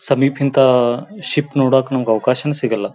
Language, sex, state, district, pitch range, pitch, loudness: Kannada, male, Karnataka, Belgaum, 125-140 Hz, 135 Hz, -16 LUFS